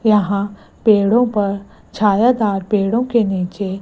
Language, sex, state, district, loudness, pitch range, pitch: Hindi, female, Gujarat, Gandhinagar, -16 LUFS, 200-220 Hz, 205 Hz